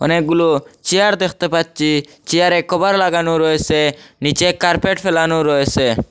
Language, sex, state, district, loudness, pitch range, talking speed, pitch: Bengali, male, Assam, Hailakandi, -15 LUFS, 150-180 Hz, 120 wpm, 165 Hz